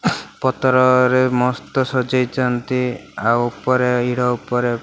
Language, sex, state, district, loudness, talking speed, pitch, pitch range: Odia, male, Odisha, Malkangiri, -18 LUFS, 100 wpm, 125 Hz, 125-130 Hz